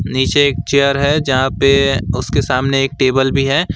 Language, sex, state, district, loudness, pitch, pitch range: Hindi, male, West Bengal, Alipurduar, -14 LUFS, 135 Hz, 130-140 Hz